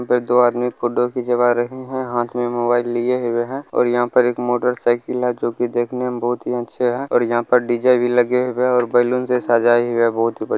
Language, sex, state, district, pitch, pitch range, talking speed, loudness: Maithili, male, Bihar, Saharsa, 120 Hz, 120-125 Hz, 250 wpm, -18 LUFS